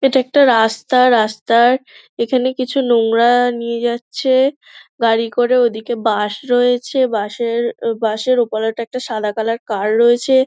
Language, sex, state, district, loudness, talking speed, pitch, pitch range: Bengali, female, West Bengal, Dakshin Dinajpur, -16 LUFS, 140 wpm, 240 Hz, 225-255 Hz